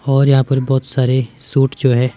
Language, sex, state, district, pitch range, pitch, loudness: Hindi, male, Himachal Pradesh, Shimla, 130-135 Hz, 135 Hz, -15 LUFS